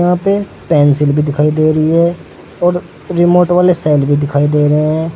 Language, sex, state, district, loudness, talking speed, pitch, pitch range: Hindi, male, Uttar Pradesh, Saharanpur, -12 LUFS, 195 wpm, 155 Hz, 150-175 Hz